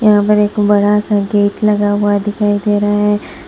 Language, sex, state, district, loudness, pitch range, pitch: Hindi, female, Assam, Hailakandi, -13 LUFS, 205-210 Hz, 205 Hz